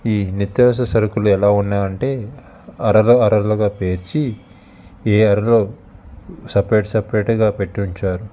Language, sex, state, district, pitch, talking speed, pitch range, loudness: Telugu, male, Telangana, Hyderabad, 105 Hz, 110 wpm, 100-115 Hz, -17 LUFS